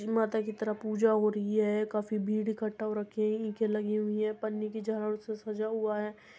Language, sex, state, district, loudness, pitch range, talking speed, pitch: Hindi, female, Uttar Pradesh, Muzaffarnagar, -32 LUFS, 215-220 Hz, 225 wpm, 215 Hz